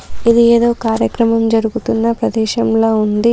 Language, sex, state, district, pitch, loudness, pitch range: Telugu, female, Telangana, Komaram Bheem, 230 Hz, -14 LUFS, 225-235 Hz